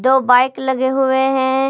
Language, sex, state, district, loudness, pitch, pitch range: Hindi, female, Jharkhand, Palamu, -15 LUFS, 265 Hz, 260-265 Hz